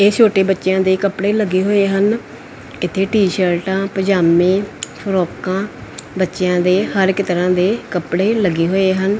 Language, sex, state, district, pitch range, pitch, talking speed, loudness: Punjabi, female, Punjab, Pathankot, 180-200 Hz, 190 Hz, 150 wpm, -16 LUFS